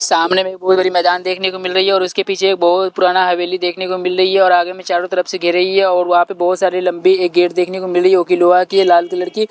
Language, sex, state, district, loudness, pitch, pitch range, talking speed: Hindi, male, Delhi, New Delhi, -14 LUFS, 185 Hz, 180-185 Hz, 315 wpm